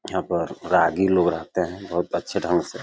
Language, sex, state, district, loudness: Hindi, male, Uttar Pradesh, Deoria, -23 LUFS